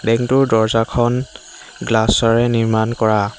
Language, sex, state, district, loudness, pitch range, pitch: Assamese, male, Assam, Hailakandi, -16 LUFS, 110-120 Hz, 115 Hz